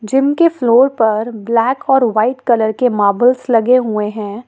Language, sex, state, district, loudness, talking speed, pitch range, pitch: Hindi, female, Jharkhand, Ranchi, -14 LUFS, 175 wpm, 215-255 Hz, 235 Hz